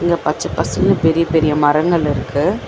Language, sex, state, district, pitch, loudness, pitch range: Tamil, female, Tamil Nadu, Chennai, 160 Hz, -16 LUFS, 150-170 Hz